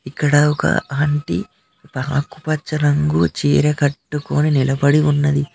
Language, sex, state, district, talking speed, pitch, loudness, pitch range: Telugu, male, Telangana, Mahabubabad, 95 wpm, 145 Hz, -18 LUFS, 140-150 Hz